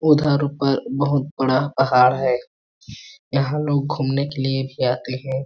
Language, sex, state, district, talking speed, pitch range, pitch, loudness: Hindi, male, Chhattisgarh, Balrampur, 155 wpm, 130-145 Hz, 135 Hz, -20 LUFS